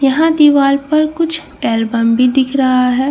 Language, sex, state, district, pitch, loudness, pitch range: Hindi, female, Bihar, Katihar, 275 Hz, -13 LUFS, 250-305 Hz